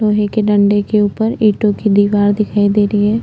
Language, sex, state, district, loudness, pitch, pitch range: Hindi, female, Uttarakhand, Tehri Garhwal, -13 LUFS, 210 Hz, 205-215 Hz